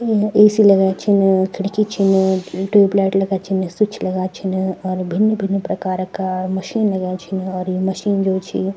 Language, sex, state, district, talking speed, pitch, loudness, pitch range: Garhwali, female, Uttarakhand, Tehri Garhwal, 180 wpm, 190 Hz, -17 LUFS, 185-200 Hz